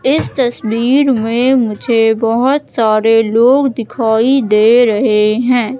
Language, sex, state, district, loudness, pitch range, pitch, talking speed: Hindi, female, Madhya Pradesh, Katni, -12 LUFS, 225-255 Hz, 235 Hz, 115 wpm